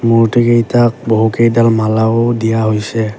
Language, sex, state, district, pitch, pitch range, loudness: Assamese, male, Assam, Kamrup Metropolitan, 115 Hz, 110-115 Hz, -12 LUFS